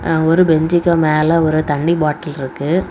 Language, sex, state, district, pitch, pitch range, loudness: Tamil, female, Tamil Nadu, Kanyakumari, 160 Hz, 150-170 Hz, -15 LUFS